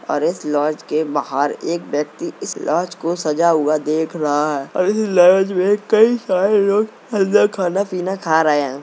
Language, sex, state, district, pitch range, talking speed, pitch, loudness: Hindi, male, Uttar Pradesh, Jalaun, 150-200 Hz, 190 wpm, 175 Hz, -17 LUFS